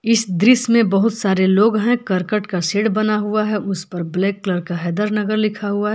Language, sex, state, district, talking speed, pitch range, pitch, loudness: Hindi, female, Jharkhand, Palamu, 230 wpm, 190-215 Hz, 210 Hz, -18 LUFS